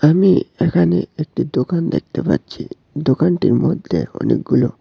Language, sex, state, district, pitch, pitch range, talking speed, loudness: Bengali, male, Tripura, West Tripura, 150 Hz, 130-170 Hz, 110 wpm, -17 LUFS